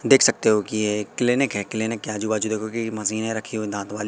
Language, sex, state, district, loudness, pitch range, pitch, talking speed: Hindi, male, Madhya Pradesh, Katni, -23 LUFS, 105-115 Hz, 110 Hz, 280 wpm